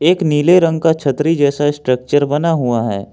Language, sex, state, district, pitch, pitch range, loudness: Hindi, male, Jharkhand, Ranchi, 145 Hz, 135-165 Hz, -14 LUFS